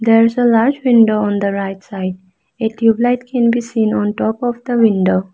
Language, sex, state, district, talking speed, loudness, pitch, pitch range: English, female, Arunachal Pradesh, Lower Dibang Valley, 215 wpm, -15 LUFS, 225 Hz, 195-240 Hz